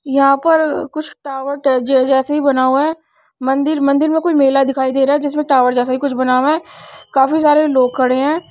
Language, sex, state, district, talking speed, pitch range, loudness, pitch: Hindi, female, Odisha, Nuapada, 210 wpm, 265-300 Hz, -14 LUFS, 275 Hz